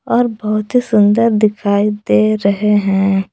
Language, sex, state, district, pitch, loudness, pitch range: Hindi, female, Jharkhand, Palamu, 210 Hz, -14 LUFS, 200-215 Hz